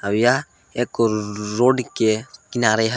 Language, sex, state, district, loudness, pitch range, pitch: Hindi, male, Jharkhand, Palamu, -20 LUFS, 110-120 Hz, 115 Hz